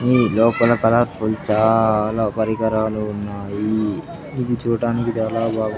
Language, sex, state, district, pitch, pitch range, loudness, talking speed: Telugu, male, Andhra Pradesh, Sri Satya Sai, 110 Hz, 110-120 Hz, -19 LUFS, 105 wpm